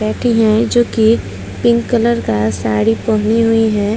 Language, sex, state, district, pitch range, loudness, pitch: Hindi, female, Uttar Pradesh, Muzaffarnagar, 205-235 Hz, -14 LUFS, 225 Hz